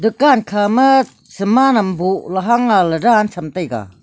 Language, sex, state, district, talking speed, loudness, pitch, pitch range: Wancho, female, Arunachal Pradesh, Longding, 195 wpm, -15 LUFS, 205 Hz, 185-240 Hz